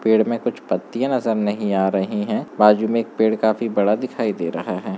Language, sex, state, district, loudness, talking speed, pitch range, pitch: Hindi, male, West Bengal, Malda, -20 LUFS, 230 wpm, 105-115 Hz, 110 Hz